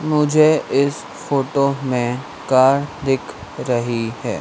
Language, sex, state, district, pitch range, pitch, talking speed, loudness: Hindi, male, Madhya Pradesh, Dhar, 125-145 Hz, 135 Hz, 110 wpm, -18 LUFS